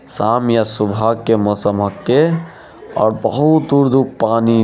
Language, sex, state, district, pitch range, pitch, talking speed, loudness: Hindi, male, Bihar, Araria, 110-135 Hz, 115 Hz, 140 wpm, -15 LUFS